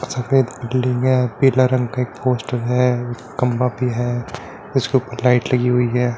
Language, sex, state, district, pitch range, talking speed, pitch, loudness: Hindi, male, Uttar Pradesh, Hamirpur, 120-130 Hz, 175 wpm, 125 Hz, -19 LUFS